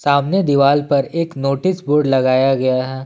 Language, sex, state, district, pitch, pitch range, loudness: Hindi, male, Jharkhand, Ranchi, 140 Hz, 135-150 Hz, -16 LUFS